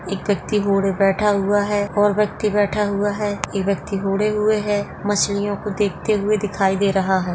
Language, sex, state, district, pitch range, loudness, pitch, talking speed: Hindi, female, Rajasthan, Nagaur, 195-210 Hz, -20 LUFS, 205 Hz, 180 wpm